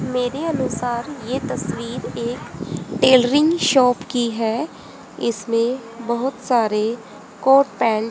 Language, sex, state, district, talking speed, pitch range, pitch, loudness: Hindi, female, Haryana, Jhajjar, 110 wpm, 230-260 Hz, 245 Hz, -20 LUFS